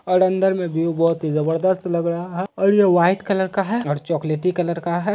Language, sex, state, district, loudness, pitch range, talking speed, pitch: Hindi, male, Bihar, Saharsa, -20 LUFS, 165-190 Hz, 220 wpm, 175 Hz